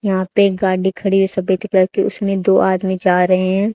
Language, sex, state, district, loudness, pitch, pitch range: Hindi, female, Haryana, Charkhi Dadri, -16 LUFS, 190 Hz, 185-195 Hz